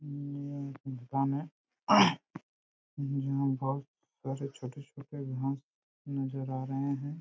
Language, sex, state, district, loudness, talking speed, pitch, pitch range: Hindi, male, Jharkhand, Jamtara, -33 LUFS, 110 wpm, 140 Hz, 135-140 Hz